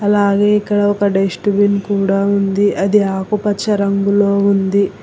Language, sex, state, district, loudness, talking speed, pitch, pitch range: Telugu, female, Telangana, Hyderabad, -15 LUFS, 130 wpm, 200 Hz, 195-205 Hz